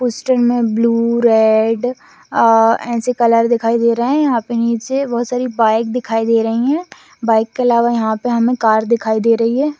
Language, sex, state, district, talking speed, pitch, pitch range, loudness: Hindi, female, Maharashtra, Pune, 195 wpm, 235 Hz, 225-250 Hz, -15 LUFS